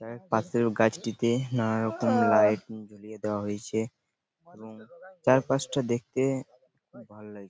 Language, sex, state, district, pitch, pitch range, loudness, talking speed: Bengali, male, West Bengal, Purulia, 115 Hz, 110-125 Hz, -27 LUFS, 120 wpm